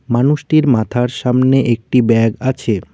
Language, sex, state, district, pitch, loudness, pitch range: Bengali, male, West Bengal, Cooch Behar, 125 Hz, -14 LUFS, 115-130 Hz